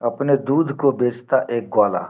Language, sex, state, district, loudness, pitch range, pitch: Hindi, male, Bihar, Gopalganj, -19 LUFS, 115-140 Hz, 125 Hz